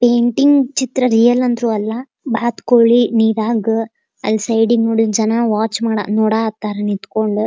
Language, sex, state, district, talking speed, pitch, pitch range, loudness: Kannada, female, Karnataka, Dharwad, 145 wpm, 225 Hz, 220-240 Hz, -15 LUFS